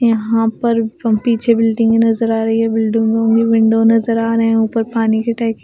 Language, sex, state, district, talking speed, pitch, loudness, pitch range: Hindi, female, Bihar, West Champaran, 200 wpm, 225 Hz, -14 LUFS, 225-230 Hz